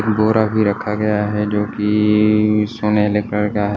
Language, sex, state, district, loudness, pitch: Hindi, male, Odisha, Malkangiri, -17 LUFS, 105 Hz